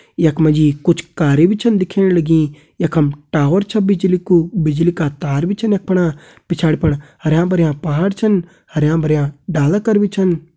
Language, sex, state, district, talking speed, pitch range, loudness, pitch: Hindi, male, Uttarakhand, Uttarkashi, 185 wpm, 155-185 Hz, -16 LUFS, 165 Hz